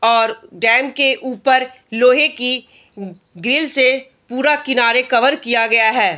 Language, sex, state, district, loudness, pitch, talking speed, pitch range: Hindi, female, Bihar, Araria, -15 LUFS, 250 Hz, 135 wpm, 230-265 Hz